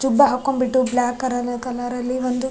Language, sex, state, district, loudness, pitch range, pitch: Kannada, female, Karnataka, Raichur, -21 LUFS, 245-260 Hz, 250 Hz